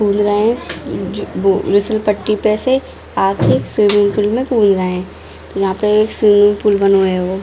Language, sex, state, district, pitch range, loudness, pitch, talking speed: Hindi, female, Bihar, Darbhanga, 195-215 Hz, -14 LUFS, 205 Hz, 210 wpm